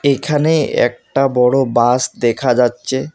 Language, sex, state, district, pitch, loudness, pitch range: Bengali, male, West Bengal, Alipurduar, 130 Hz, -15 LUFS, 125-140 Hz